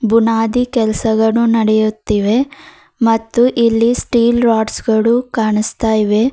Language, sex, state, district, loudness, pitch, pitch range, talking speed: Kannada, female, Karnataka, Bidar, -14 LUFS, 230 Hz, 220-240 Hz, 95 wpm